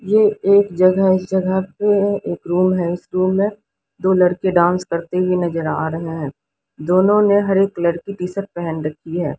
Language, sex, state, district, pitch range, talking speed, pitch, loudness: Hindi, female, Odisha, Sambalpur, 170-195 Hz, 200 wpm, 185 Hz, -18 LUFS